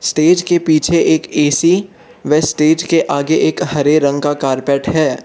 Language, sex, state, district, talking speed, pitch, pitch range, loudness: Hindi, male, Arunachal Pradesh, Lower Dibang Valley, 170 wpm, 155 Hz, 145-165 Hz, -14 LUFS